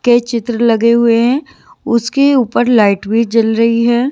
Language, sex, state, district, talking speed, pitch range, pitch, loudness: Hindi, female, Himachal Pradesh, Shimla, 175 wpm, 230-240 Hz, 235 Hz, -12 LUFS